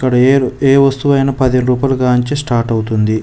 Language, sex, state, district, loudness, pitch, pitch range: Telugu, male, Telangana, Mahabubabad, -13 LUFS, 130 Hz, 125-135 Hz